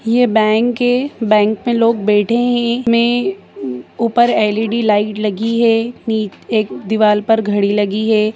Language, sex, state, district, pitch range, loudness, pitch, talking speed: Hindi, female, Bihar, Jahanabad, 210-235 Hz, -15 LUFS, 220 Hz, 145 wpm